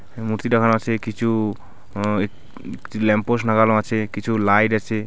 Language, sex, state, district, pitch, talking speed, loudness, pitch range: Bengali, male, West Bengal, Alipurduar, 110 Hz, 140 wpm, -20 LUFS, 105-115 Hz